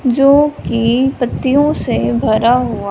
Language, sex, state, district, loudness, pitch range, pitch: Hindi, female, Punjab, Fazilka, -13 LUFS, 235-275 Hz, 250 Hz